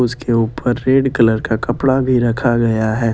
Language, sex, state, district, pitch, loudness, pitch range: Hindi, male, Jharkhand, Ranchi, 120 Hz, -16 LUFS, 115-130 Hz